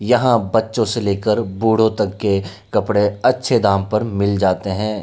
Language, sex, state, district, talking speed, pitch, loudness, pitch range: Hindi, male, Uttar Pradesh, Hamirpur, 165 wpm, 105 Hz, -18 LUFS, 100-115 Hz